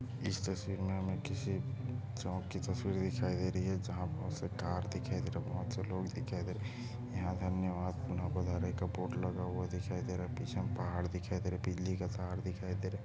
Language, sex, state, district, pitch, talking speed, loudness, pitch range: Hindi, male, Chhattisgarh, Bastar, 95 Hz, 250 wpm, -39 LUFS, 90-115 Hz